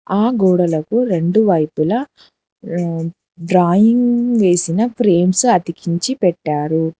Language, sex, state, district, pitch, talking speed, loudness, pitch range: Telugu, female, Telangana, Hyderabad, 180 Hz, 85 wpm, -15 LUFS, 170-225 Hz